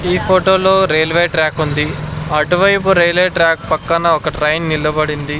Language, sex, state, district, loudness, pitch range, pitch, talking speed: Telugu, male, Andhra Pradesh, Sri Satya Sai, -14 LUFS, 155-180 Hz, 165 Hz, 135 wpm